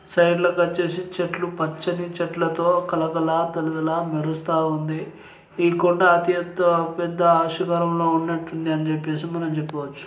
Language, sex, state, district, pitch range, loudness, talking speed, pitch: Telugu, male, Telangana, Nalgonda, 160-175 Hz, -22 LUFS, 125 wpm, 170 Hz